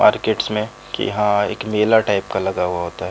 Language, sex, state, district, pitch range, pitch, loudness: Hindi, male, Uttar Pradesh, Jyotiba Phule Nagar, 90-105 Hz, 100 Hz, -19 LUFS